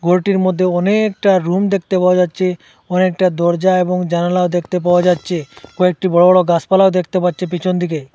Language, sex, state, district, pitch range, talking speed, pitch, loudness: Bengali, male, Assam, Hailakandi, 175-185 Hz, 160 wpm, 180 Hz, -15 LUFS